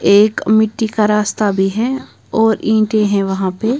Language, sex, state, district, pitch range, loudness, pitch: Hindi, female, Punjab, Kapurthala, 205-225 Hz, -15 LUFS, 215 Hz